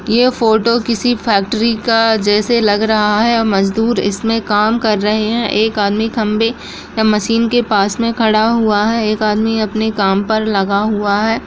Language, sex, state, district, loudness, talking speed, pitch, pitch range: Hindi, female, Bihar, Bhagalpur, -14 LUFS, 185 wpm, 220 Hz, 210-230 Hz